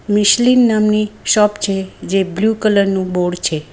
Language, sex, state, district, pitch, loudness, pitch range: Gujarati, female, Gujarat, Valsad, 205 Hz, -15 LUFS, 190-215 Hz